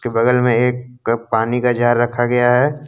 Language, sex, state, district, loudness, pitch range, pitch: Hindi, male, Jharkhand, Deoghar, -16 LUFS, 120-125 Hz, 120 Hz